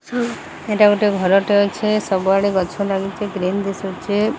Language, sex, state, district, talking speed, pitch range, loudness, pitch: Odia, female, Odisha, Sambalpur, 135 wpm, 195-210 Hz, -18 LUFS, 200 Hz